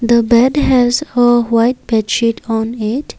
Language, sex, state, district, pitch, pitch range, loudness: English, female, Assam, Kamrup Metropolitan, 235 Hz, 230-250 Hz, -13 LUFS